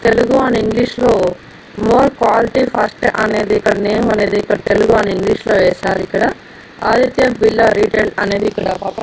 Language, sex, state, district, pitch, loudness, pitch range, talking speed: Telugu, female, Andhra Pradesh, Annamaya, 220 Hz, -14 LUFS, 210-235 Hz, 140 wpm